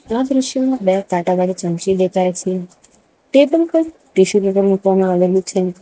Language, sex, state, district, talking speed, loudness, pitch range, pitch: Gujarati, female, Gujarat, Valsad, 145 wpm, -16 LUFS, 185-260 Hz, 190 Hz